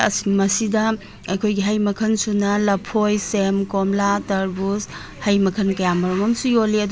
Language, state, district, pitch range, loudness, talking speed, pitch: Manipuri, Manipur, Imphal West, 195-210 Hz, -20 LUFS, 140 wpm, 200 Hz